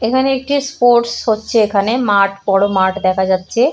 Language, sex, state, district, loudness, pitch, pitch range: Bengali, female, West Bengal, Purulia, -14 LUFS, 215 Hz, 195-245 Hz